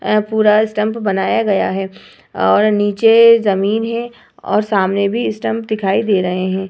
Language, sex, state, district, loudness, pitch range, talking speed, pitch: Hindi, female, Uttar Pradesh, Hamirpur, -15 LUFS, 195-225 Hz, 150 wpm, 210 Hz